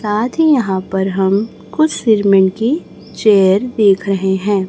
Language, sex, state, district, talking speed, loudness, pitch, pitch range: Hindi, male, Chhattisgarh, Raipur, 155 wpm, -14 LUFS, 200 Hz, 190-225 Hz